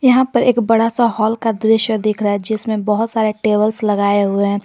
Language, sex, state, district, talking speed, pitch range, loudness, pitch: Hindi, female, Jharkhand, Garhwa, 230 wpm, 210-230 Hz, -16 LUFS, 220 Hz